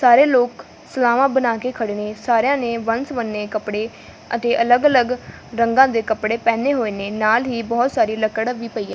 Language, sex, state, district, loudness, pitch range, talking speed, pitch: Punjabi, female, Punjab, Fazilka, -19 LUFS, 220-250 Hz, 195 wpm, 235 Hz